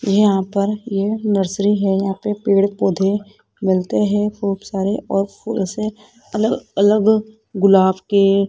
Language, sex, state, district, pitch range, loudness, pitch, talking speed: Hindi, female, Rajasthan, Jaipur, 195-210 Hz, -18 LUFS, 200 Hz, 140 wpm